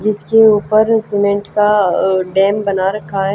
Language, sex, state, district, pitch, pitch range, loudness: Hindi, female, Haryana, Jhajjar, 205 Hz, 195-215 Hz, -13 LUFS